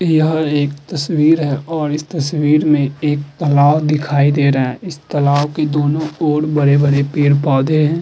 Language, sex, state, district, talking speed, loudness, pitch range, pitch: Hindi, male, Uttar Pradesh, Muzaffarnagar, 180 wpm, -15 LUFS, 145-155 Hz, 150 Hz